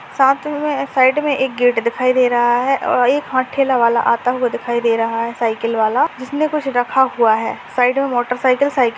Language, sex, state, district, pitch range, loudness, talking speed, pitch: Hindi, female, Maharashtra, Sindhudurg, 240-270 Hz, -16 LUFS, 220 wpm, 255 Hz